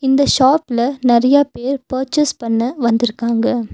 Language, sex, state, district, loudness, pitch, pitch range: Tamil, female, Tamil Nadu, Nilgiris, -15 LUFS, 255 Hz, 235-270 Hz